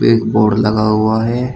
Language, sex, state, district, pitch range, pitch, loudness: Hindi, male, Uttar Pradesh, Shamli, 110-115 Hz, 110 Hz, -14 LUFS